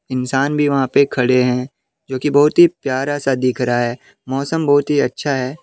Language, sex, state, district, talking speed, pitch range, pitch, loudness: Hindi, male, Jharkhand, Deoghar, 215 wpm, 125-145 Hz, 135 Hz, -17 LUFS